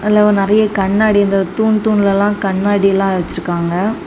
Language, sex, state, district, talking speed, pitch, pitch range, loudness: Tamil, female, Tamil Nadu, Kanyakumari, 160 wpm, 200 Hz, 195-210 Hz, -14 LUFS